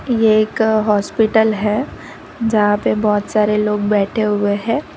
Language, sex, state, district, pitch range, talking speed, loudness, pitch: Hindi, female, Gujarat, Valsad, 210-220 Hz, 145 wpm, -16 LUFS, 215 Hz